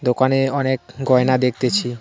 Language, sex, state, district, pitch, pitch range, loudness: Bengali, male, West Bengal, Cooch Behar, 130 Hz, 125-130 Hz, -18 LUFS